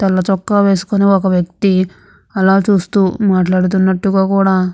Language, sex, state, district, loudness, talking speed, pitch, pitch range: Telugu, female, Andhra Pradesh, Visakhapatnam, -13 LUFS, 115 wpm, 190 Hz, 185-195 Hz